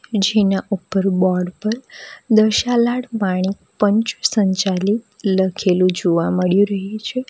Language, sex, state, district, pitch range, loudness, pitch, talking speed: Gujarati, female, Gujarat, Valsad, 190-215 Hz, -18 LUFS, 200 Hz, 105 wpm